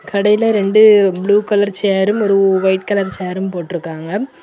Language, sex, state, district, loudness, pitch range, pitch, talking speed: Tamil, female, Tamil Nadu, Kanyakumari, -14 LUFS, 190-205 Hz, 200 Hz, 135 wpm